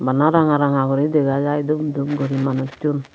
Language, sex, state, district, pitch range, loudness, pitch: Chakma, female, Tripura, Unakoti, 135-150 Hz, -19 LUFS, 145 Hz